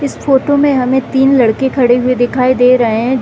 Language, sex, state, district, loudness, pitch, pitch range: Hindi, female, Bihar, Gopalganj, -11 LUFS, 255 Hz, 245-265 Hz